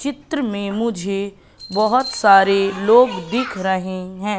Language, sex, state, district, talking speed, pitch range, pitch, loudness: Hindi, female, Madhya Pradesh, Katni, 125 wpm, 195-235 Hz, 200 Hz, -18 LUFS